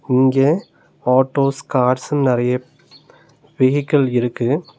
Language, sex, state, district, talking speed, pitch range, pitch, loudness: Tamil, male, Tamil Nadu, Nilgiris, 75 wpm, 125-150 Hz, 135 Hz, -17 LUFS